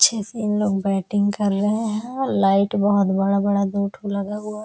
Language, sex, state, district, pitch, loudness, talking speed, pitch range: Hindi, female, Bihar, Araria, 205 Hz, -21 LUFS, 195 wpm, 200-210 Hz